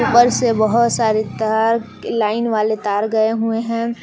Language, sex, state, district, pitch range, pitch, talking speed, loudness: Hindi, female, Jharkhand, Palamu, 220-230 Hz, 225 Hz, 165 wpm, -17 LUFS